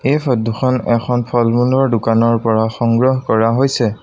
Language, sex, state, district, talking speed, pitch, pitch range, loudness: Assamese, male, Assam, Sonitpur, 150 wpm, 120 Hz, 115-130 Hz, -15 LUFS